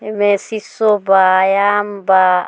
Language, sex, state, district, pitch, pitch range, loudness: Bhojpuri, female, Bihar, Muzaffarpur, 200 Hz, 190-205 Hz, -14 LUFS